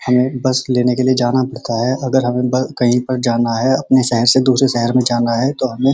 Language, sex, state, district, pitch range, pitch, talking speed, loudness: Hindi, male, Uttar Pradesh, Muzaffarnagar, 120-130 Hz, 125 Hz, 250 wpm, -15 LUFS